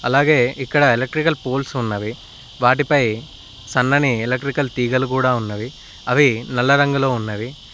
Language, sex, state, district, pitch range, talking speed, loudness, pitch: Telugu, male, Telangana, Mahabubabad, 115-140 Hz, 115 wpm, -18 LUFS, 125 Hz